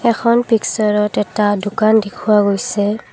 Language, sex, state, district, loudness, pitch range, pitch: Assamese, female, Assam, Kamrup Metropolitan, -15 LUFS, 205-225 Hz, 210 Hz